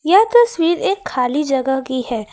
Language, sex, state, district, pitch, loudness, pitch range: Hindi, female, Jharkhand, Ranchi, 295 Hz, -16 LUFS, 260-390 Hz